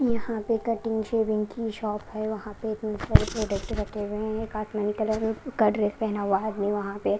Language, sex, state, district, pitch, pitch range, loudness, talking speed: Hindi, female, Haryana, Rohtak, 215 Hz, 210-220 Hz, -28 LUFS, 215 wpm